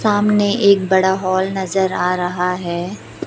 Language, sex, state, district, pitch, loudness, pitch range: Hindi, female, Chhattisgarh, Raipur, 190 Hz, -17 LUFS, 180-200 Hz